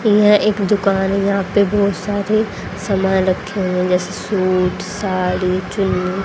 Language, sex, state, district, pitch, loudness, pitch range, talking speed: Hindi, female, Haryana, Rohtak, 195 Hz, -17 LUFS, 185-205 Hz, 155 wpm